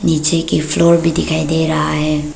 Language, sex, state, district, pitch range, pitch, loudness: Hindi, female, Arunachal Pradesh, Papum Pare, 155-165 Hz, 160 Hz, -15 LUFS